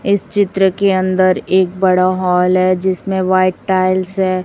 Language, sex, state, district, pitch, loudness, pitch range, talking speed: Hindi, female, Chhattisgarh, Raipur, 185 Hz, -14 LUFS, 185-190 Hz, 160 wpm